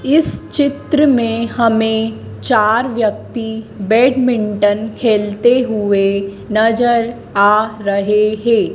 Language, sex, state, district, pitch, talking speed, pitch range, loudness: Hindi, female, Madhya Pradesh, Dhar, 220 Hz, 90 wpm, 210-240 Hz, -15 LUFS